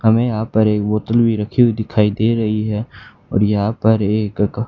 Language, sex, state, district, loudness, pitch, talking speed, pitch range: Hindi, male, Haryana, Charkhi Dadri, -17 LUFS, 110 Hz, 205 wpm, 105-115 Hz